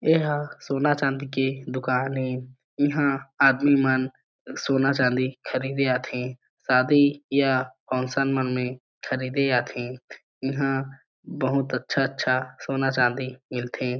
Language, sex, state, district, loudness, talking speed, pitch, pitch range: Chhattisgarhi, male, Chhattisgarh, Jashpur, -25 LUFS, 125 wpm, 130 Hz, 130-135 Hz